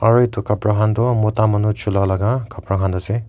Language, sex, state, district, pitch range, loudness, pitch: Nagamese, male, Nagaland, Kohima, 100-115 Hz, -18 LUFS, 105 Hz